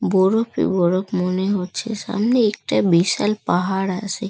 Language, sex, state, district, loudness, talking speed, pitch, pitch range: Bengali, female, West Bengal, North 24 Parganas, -20 LUFS, 140 wpm, 190 Hz, 185-215 Hz